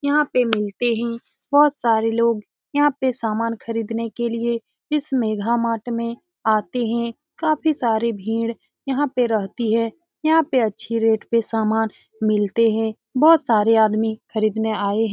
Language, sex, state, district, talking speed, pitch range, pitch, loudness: Hindi, female, Bihar, Saran, 160 wpm, 220-250 Hz, 230 Hz, -21 LUFS